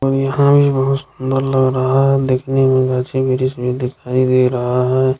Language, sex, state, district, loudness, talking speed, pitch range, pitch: Hindi, male, Bihar, Jamui, -15 LUFS, 160 wpm, 130-135 Hz, 130 Hz